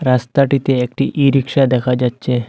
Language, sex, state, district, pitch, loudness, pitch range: Bengali, male, Assam, Hailakandi, 130 Hz, -15 LUFS, 125-140 Hz